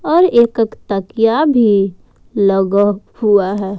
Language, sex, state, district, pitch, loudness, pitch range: Hindi, female, Jharkhand, Ranchi, 205 Hz, -14 LUFS, 195-230 Hz